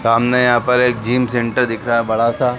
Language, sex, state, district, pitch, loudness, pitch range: Hindi, male, Chhattisgarh, Sarguja, 120 Hz, -16 LUFS, 115-125 Hz